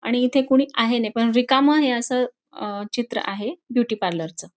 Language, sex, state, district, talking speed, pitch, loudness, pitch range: Marathi, female, Maharashtra, Nagpur, 195 wpm, 240 Hz, -21 LUFS, 215-260 Hz